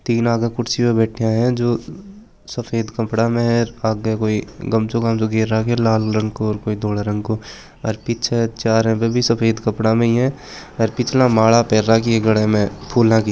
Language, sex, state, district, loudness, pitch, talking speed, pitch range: Hindi, male, Rajasthan, Churu, -18 LUFS, 115 Hz, 210 wpm, 110-120 Hz